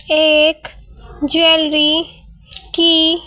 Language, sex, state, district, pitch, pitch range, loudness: Hindi, female, Madhya Pradesh, Bhopal, 315 Hz, 305-330 Hz, -12 LUFS